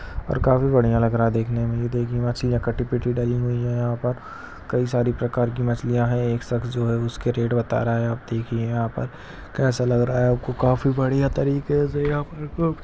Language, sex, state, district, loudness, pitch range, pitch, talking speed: Hindi, male, Chhattisgarh, Rajnandgaon, -23 LUFS, 120-125 Hz, 120 Hz, 220 wpm